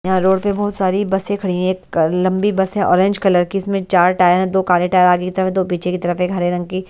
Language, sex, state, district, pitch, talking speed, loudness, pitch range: Hindi, male, Delhi, New Delhi, 185 Hz, 270 wpm, -16 LUFS, 180-190 Hz